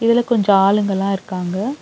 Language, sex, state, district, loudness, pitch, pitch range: Tamil, female, Tamil Nadu, Nilgiris, -17 LUFS, 200 Hz, 195-230 Hz